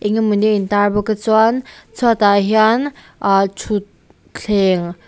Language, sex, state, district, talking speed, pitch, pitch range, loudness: Mizo, female, Mizoram, Aizawl, 165 wpm, 210 Hz, 200-220 Hz, -16 LUFS